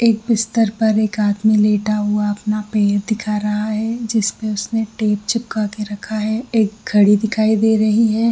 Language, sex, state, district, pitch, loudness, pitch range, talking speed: Hindi, female, Jharkhand, Jamtara, 215 Hz, -17 LUFS, 210-220 Hz, 180 wpm